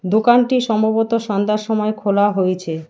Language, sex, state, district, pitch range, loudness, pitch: Bengali, female, West Bengal, Alipurduar, 200-225 Hz, -17 LUFS, 215 Hz